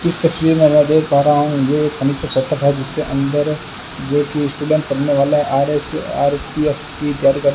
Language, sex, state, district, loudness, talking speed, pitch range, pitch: Hindi, male, Rajasthan, Bikaner, -16 LUFS, 165 wpm, 140-150 Hz, 145 Hz